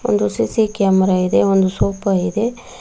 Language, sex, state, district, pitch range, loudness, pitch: Kannada, female, Karnataka, Bangalore, 185-215 Hz, -17 LUFS, 195 Hz